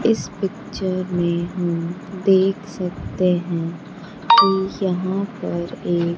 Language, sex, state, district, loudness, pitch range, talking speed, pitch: Hindi, female, Bihar, Kaimur, -21 LUFS, 175-195 Hz, 105 wpm, 185 Hz